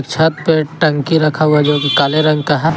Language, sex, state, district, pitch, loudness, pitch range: Hindi, male, Jharkhand, Garhwa, 155 Hz, -13 LUFS, 145-160 Hz